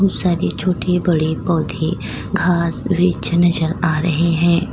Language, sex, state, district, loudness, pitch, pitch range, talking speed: Hindi, female, Uttar Pradesh, Lalitpur, -17 LUFS, 170 Hz, 165-180 Hz, 125 wpm